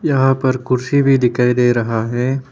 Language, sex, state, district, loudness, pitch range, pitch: Hindi, male, Arunachal Pradesh, Papum Pare, -16 LUFS, 125-135 Hz, 130 Hz